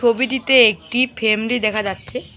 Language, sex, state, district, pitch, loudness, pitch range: Bengali, male, West Bengal, Alipurduar, 240 Hz, -16 LUFS, 215-255 Hz